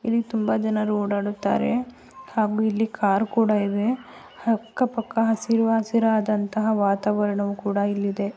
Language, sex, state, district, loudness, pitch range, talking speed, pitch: Kannada, female, Karnataka, Raichur, -23 LUFS, 205-230 Hz, 130 wpm, 220 Hz